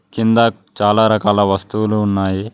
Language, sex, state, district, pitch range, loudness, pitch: Telugu, male, Telangana, Mahabubabad, 100-110 Hz, -15 LUFS, 105 Hz